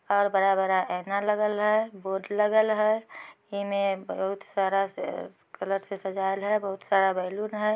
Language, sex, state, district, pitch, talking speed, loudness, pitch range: Magahi, female, Bihar, Samastipur, 200 Hz, 145 wpm, -27 LUFS, 195-210 Hz